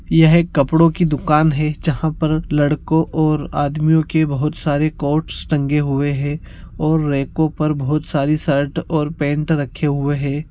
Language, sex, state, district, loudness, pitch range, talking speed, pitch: Hindi, male, Bihar, Darbhanga, -18 LUFS, 145-160 Hz, 165 wpm, 150 Hz